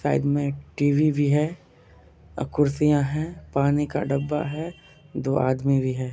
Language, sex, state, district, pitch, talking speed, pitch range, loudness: Hindi, male, Bihar, Kishanganj, 145 Hz, 155 wpm, 135-150 Hz, -24 LUFS